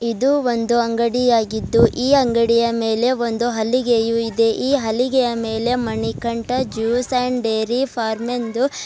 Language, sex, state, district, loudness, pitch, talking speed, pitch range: Kannada, female, Karnataka, Bidar, -19 LUFS, 235 Hz, 120 wpm, 225-250 Hz